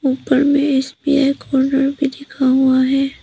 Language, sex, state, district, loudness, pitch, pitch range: Hindi, female, Arunachal Pradesh, Papum Pare, -16 LUFS, 275 Hz, 265-280 Hz